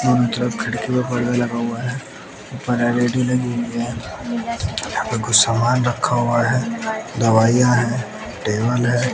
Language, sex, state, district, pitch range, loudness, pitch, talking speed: Hindi, male, Bihar, West Champaran, 120-125 Hz, -19 LUFS, 120 Hz, 155 wpm